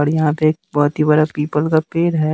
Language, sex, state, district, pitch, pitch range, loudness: Hindi, male, Bihar, West Champaran, 155 Hz, 150-160 Hz, -17 LUFS